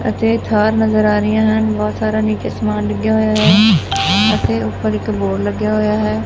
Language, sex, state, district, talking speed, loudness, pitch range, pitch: Punjabi, female, Punjab, Fazilka, 190 wpm, -15 LUFS, 105-110 Hz, 110 Hz